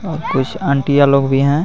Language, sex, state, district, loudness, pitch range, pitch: Hindi, male, Jharkhand, Garhwa, -15 LUFS, 140-155 Hz, 140 Hz